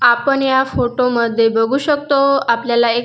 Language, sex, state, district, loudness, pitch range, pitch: Marathi, female, Maharashtra, Dhule, -15 LUFS, 235-275 Hz, 245 Hz